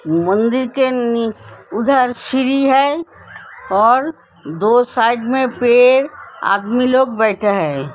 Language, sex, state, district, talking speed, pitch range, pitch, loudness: Hindi, female, Uttar Pradesh, Hamirpur, 115 wpm, 215-260 Hz, 245 Hz, -15 LUFS